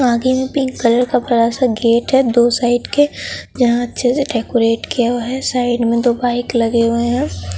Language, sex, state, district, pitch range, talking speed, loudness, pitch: Hindi, female, Bihar, Katihar, 235-250 Hz, 205 wpm, -15 LUFS, 240 Hz